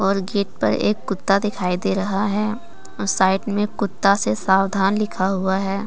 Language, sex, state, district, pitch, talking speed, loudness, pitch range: Hindi, female, Jharkhand, Deoghar, 195 Hz, 175 wpm, -20 LUFS, 190-205 Hz